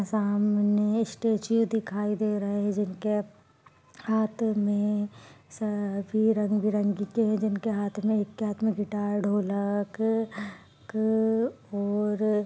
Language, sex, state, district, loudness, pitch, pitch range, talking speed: Hindi, female, Uttar Pradesh, Ghazipur, -27 LUFS, 210 Hz, 205-220 Hz, 115 wpm